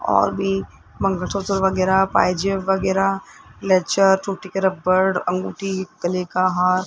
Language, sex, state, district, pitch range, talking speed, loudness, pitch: Hindi, male, Rajasthan, Jaipur, 185-195 Hz, 130 wpm, -20 LUFS, 190 Hz